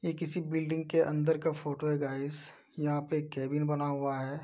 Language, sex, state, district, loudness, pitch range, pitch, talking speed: Hindi, male, Uttar Pradesh, Deoria, -33 LUFS, 145-160 Hz, 150 Hz, 215 wpm